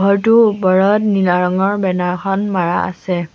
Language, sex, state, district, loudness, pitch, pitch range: Assamese, female, Assam, Sonitpur, -15 LUFS, 190 Hz, 180-200 Hz